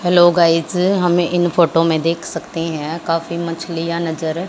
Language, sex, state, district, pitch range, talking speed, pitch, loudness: Hindi, female, Haryana, Jhajjar, 165-175 Hz, 160 wpm, 170 Hz, -17 LUFS